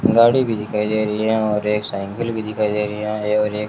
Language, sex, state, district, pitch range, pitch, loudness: Hindi, male, Rajasthan, Bikaner, 105-110 Hz, 105 Hz, -20 LUFS